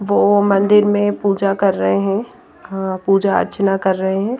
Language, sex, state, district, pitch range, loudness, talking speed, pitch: Hindi, female, Bihar, Patna, 195-205 Hz, -16 LUFS, 175 wpm, 195 Hz